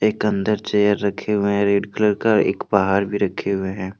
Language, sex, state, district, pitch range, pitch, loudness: Hindi, male, Jharkhand, Deoghar, 100-105 Hz, 100 Hz, -20 LUFS